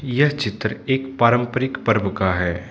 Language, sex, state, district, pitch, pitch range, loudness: Hindi, male, Manipur, Imphal West, 120 Hz, 100-130 Hz, -20 LUFS